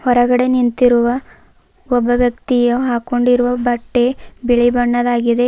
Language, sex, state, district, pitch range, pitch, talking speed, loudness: Kannada, female, Karnataka, Bidar, 240-245 Hz, 245 Hz, 85 wpm, -15 LUFS